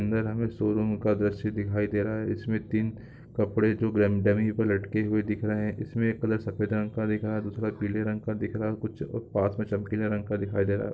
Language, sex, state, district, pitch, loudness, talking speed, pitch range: Hindi, male, Chhattisgarh, Korba, 105 Hz, -28 LUFS, 110 wpm, 105-110 Hz